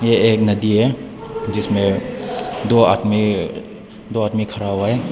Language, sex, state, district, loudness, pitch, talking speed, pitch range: Hindi, male, Nagaland, Dimapur, -18 LUFS, 105 Hz, 140 wpm, 105-115 Hz